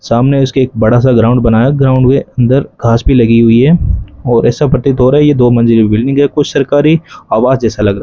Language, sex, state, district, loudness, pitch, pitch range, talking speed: Hindi, male, Rajasthan, Bikaner, -9 LUFS, 125 Hz, 115-140 Hz, 240 wpm